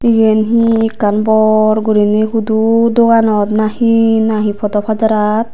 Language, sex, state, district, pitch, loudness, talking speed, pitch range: Chakma, female, Tripura, Unakoti, 220 Hz, -12 LUFS, 120 wpm, 215-225 Hz